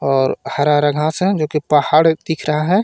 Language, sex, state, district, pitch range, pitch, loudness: Hindi, male, Jharkhand, Garhwa, 145-160 Hz, 150 Hz, -16 LUFS